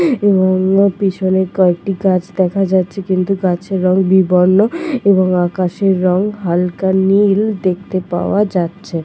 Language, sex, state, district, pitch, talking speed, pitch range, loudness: Bengali, female, West Bengal, Dakshin Dinajpur, 190 Hz, 125 wpm, 185-195 Hz, -14 LUFS